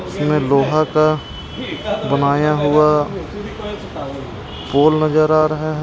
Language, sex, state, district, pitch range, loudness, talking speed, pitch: Hindi, male, Jharkhand, Ranchi, 140-155 Hz, -17 LUFS, 105 wpm, 150 Hz